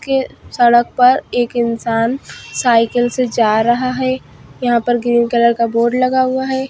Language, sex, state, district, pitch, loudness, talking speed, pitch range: Hindi, female, Bihar, Madhepura, 240 Hz, -15 LUFS, 170 wpm, 235-255 Hz